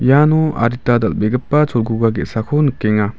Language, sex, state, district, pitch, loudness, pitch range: Garo, male, Meghalaya, West Garo Hills, 120 Hz, -16 LUFS, 110-145 Hz